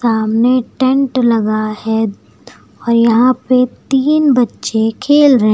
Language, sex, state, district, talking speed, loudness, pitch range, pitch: Hindi, female, Uttar Pradesh, Lucknow, 120 wpm, -13 LUFS, 220-260 Hz, 240 Hz